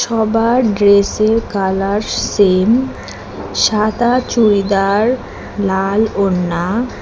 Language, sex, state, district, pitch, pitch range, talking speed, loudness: Bengali, female, West Bengal, Alipurduar, 210 Hz, 195-225 Hz, 75 wpm, -14 LUFS